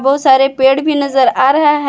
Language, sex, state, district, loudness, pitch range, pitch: Hindi, female, Jharkhand, Palamu, -11 LUFS, 265-290 Hz, 275 Hz